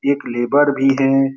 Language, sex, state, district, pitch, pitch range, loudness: Hindi, male, Bihar, Lakhisarai, 135 Hz, 135-140 Hz, -16 LUFS